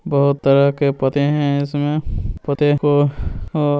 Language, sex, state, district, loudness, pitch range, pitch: Hindi, male, Bihar, Saran, -18 LUFS, 140-145 Hz, 145 Hz